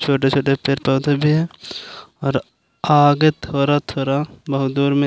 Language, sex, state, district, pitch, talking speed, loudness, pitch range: Hindi, male, Maharashtra, Aurangabad, 140 Hz, 165 wpm, -18 LUFS, 135-145 Hz